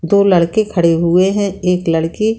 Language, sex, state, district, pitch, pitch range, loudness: Hindi, female, Bihar, Saran, 180 Hz, 170-200 Hz, -14 LUFS